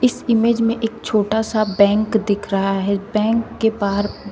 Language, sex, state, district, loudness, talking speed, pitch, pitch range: Hindi, female, Uttar Pradesh, Shamli, -18 LUFS, 180 wpm, 215 Hz, 200-225 Hz